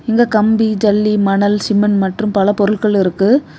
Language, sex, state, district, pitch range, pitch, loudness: Tamil, female, Tamil Nadu, Kanyakumari, 200-215 Hz, 210 Hz, -14 LUFS